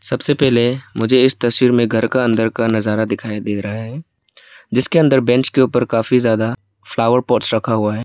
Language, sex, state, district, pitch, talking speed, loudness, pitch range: Hindi, male, Arunachal Pradesh, Lower Dibang Valley, 120 Hz, 200 wpm, -16 LUFS, 110-125 Hz